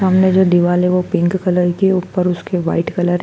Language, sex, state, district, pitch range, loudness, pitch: Hindi, female, Madhya Pradesh, Dhar, 175-185 Hz, -15 LUFS, 180 Hz